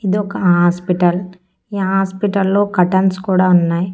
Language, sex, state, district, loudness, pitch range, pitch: Telugu, female, Andhra Pradesh, Annamaya, -15 LUFS, 180-195 Hz, 190 Hz